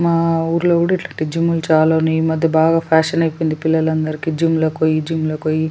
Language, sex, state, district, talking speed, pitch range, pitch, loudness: Telugu, female, Telangana, Nalgonda, 210 wpm, 160-165 Hz, 160 Hz, -17 LUFS